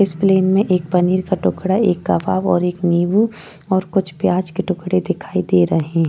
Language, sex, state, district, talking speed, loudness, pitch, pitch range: Hindi, female, Uttar Pradesh, Jyotiba Phule Nagar, 205 wpm, -17 LUFS, 185 Hz, 170-190 Hz